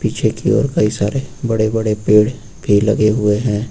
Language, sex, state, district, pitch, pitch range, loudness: Hindi, male, Uttar Pradesh, Lucknow, 110 Hz, 105-110 Hz, -16 LUFS